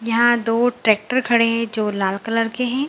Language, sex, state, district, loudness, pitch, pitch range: Hindi, female, Bihar, Samastipur, -19 LUFS, 230 Hz, 225-240 Hz